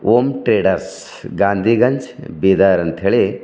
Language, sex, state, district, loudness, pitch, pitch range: Kannada, male, Karnataka, Bidar, -16 LUFS, 95 Hz, 95-115 Hz